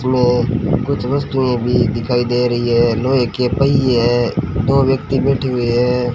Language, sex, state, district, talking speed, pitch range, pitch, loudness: Hindi, male, Rajasthan, Bikaner, 165 wpm, 120-130 Hz, 125 Hz, -16 LUFS